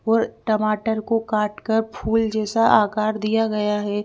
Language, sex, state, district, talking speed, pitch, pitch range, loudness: Hindi, female, Madhya Pradesh, Bhopal, 150 wpm, 220 Hz, 215-225 Hz, -21 LUFS